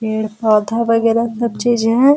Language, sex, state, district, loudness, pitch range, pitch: Hindi, female, Bihar, Araria, -16 LUFS, 220-235 Hz, 230 Hz